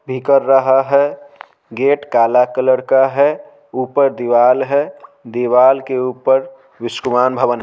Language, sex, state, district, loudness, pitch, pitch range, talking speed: Hindi, male, Bihar, Patna, -14 LUFS, 130 Hz, 125-140 Hz, 135 wpm